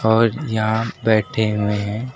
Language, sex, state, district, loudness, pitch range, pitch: Hindi, male, Uttar Pradesh, Lucknow, -19 LUFS, 105-115 Hz, 110 Hz